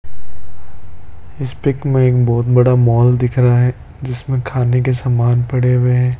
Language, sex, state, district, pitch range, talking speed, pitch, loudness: Hindi, male, Rajasthan, Bikaner, 120-125 Hz, 165 wpm, 125 Hz, -14 LUFS